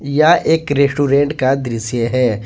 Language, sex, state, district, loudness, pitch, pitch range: Hindi, male, Jharkhand, Ranchi, -15 LUFS, 140 Hz, 125-145 Hz